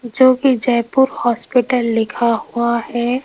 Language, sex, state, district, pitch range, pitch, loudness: Hindi, female, Rajasthan, Jaipur, 235-255 Hz, 240 Hz, -16 LUFS